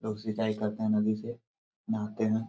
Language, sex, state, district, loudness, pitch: Hindi, male, Jharkhand, Jamtara, -32 LUFS, 110 Hz